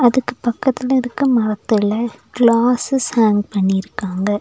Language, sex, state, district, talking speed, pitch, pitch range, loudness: Tamil, female, Tamil Nadu, Nilgiris, 95 wpm, 235 Hz, 205-250 Hz, -17 LUFS